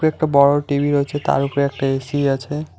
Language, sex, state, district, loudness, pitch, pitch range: Bengali, male, West Bengal, Alipurduar, -18 LUFS, 140 Hz, 140-145 Hz